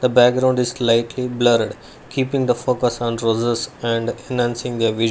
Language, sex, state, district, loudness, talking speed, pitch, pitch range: English, male, Karnataka, Bangalore, -19 LUFS, 150 wpm, 120 Hz, 115-125 Hz